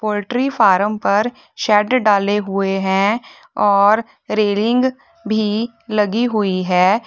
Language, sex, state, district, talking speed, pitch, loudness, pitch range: Hindi, female, Uttar Pradesh, Lalitpur, 110 wpm, 210 Hz, -17 LUFS, 200-225 Hz